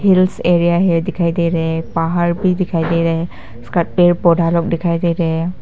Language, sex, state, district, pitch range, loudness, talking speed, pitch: Hindi, female, Arunachal Pradesh, Papum Pare, 165-175 Hz, -16 LUFS, 225 wpm, 170 Hz